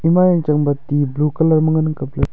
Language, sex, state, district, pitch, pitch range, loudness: Wancho, male, Arunachal Pradesh, Longding, 150 Hz, 145-160 Hz, -16 LUFS